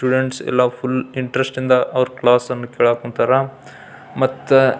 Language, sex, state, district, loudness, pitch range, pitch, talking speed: Kannada, male, Karnataka, Belgaum, -18 LUFS, 125-130 Hz, 130 Hz, 135 wpm